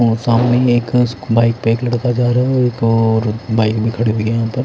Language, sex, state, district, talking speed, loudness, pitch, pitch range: Hindi, male, Odisha, Khordha, 230 wpm, -15 LUFS, 115 Hz, 115-125 Hz